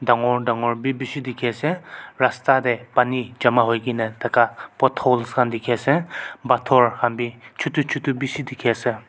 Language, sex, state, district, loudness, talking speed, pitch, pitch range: Nagamese, male, Nagaland, Kohima, -21 LUFS, 145 wpm, 125 Hz, 120-135 Hz